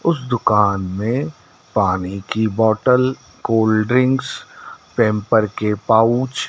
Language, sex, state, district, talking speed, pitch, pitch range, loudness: Hindi, male, Madhya Pradesh, Dhar, 100 wpm, 110 Hz, 105-125 Hz, -18 LUFS